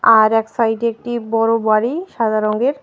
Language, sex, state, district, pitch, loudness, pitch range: Bengali, female, West Bengal, Alipurduar, 225 Hz, -17 LUFS, 220-235 Hz